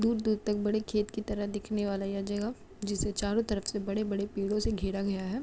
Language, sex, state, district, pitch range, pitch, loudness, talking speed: Hindi, female, Uttar Pradesh, Jalaun, 200-215 Hz, 205 Hz, -32 LUFS, 230 wpm